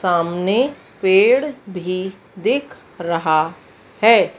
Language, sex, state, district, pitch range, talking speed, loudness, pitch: Hindi, female, Madhya Pradesh, Dhar, 170-275 Hz, 80 wpm, -18 LUFS, 190 Hz